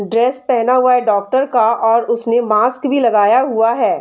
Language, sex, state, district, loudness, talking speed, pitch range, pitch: Hindi, female, Chhattisgarh, Bilaspur, -14 LUFS, 195 wpm, 225-255 Hz, 240 Hz